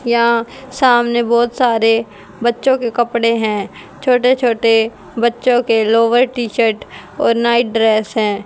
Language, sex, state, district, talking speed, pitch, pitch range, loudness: Hindi, female, Haryana, Rohtak, 135 wpm, 235 Hz, 225-245 Hz, -15 LUFS